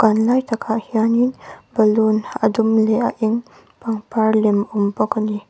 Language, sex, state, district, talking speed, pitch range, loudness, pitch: Mizo, female, Mizoram, Aizawl, 175 wpm, 215-230 Hz, -18 LUFS, 220 Hz